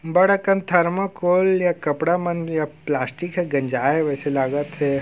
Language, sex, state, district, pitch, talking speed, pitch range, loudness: Chhattisgarhi, male, Chhattisgarh, Raigarh, 165 Hz, 165 wpm, 145-180 Hz, -21 LUFS